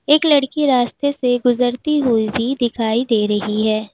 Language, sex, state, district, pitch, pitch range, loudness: Hindi, female, Uttar Pradesh, Lalitpur, 245 Hz, 225-280 Hz, -17 LUFS